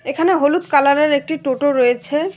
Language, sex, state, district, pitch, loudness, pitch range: Bengali, female, West Bengal, Alipurduar, 285 Hz, -16 LUFS, 275-315 Hz